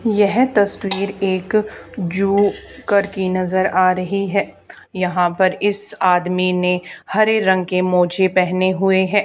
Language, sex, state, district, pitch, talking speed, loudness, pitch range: Hindi, female, Haryana, Charkhi Dadri, 190 Hz, 135 wpm, -17 LUFS, 185-200 Hz